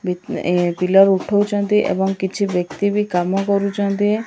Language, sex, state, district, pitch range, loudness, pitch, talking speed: Odia, female, Odisha, Malkangiri, 180-205 Hz, -18 LUFS, 195 Hz, 85 wpm